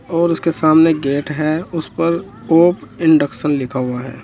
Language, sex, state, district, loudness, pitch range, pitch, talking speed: Hindi, male, Uttar Pradesh, Saharanpur, -16 LUFS, 145-165 Hz, 160 Hz, 185 wpm